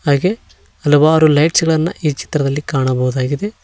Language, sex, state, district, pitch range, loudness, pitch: Kannada, male, Karnataka, Koppal, 140-165 Hz, -15 LUFS, 150 Hz